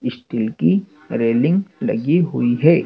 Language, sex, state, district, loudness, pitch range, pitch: Hindi, male, Madhya Pradesh, Dhar, -19 LUFS, 120-195 Hz, 160 Hz